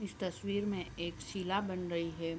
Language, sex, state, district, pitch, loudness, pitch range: Hindi, female, Bihar, Bhagalpur, 185 Hz, -38 LUFS, 170-200 Hz